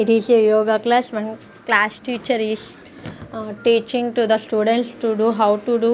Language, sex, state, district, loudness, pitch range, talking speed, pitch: English, female, Punjab, Fazilka, -18 LUFS, 220-235 Hz, 200 wpm, 225 Hz